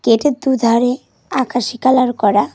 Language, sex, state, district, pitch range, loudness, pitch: Bengali, female, West Bengal, Cooch Behar, 230-260 Hz, -15 LUFS, 245 Hz